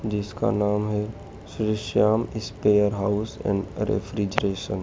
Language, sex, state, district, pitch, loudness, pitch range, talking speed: Hindi, male, Madhya Pradesh, Dhar, 105 Hz, -25 LUFS, 100-110 Hz, 125 wpm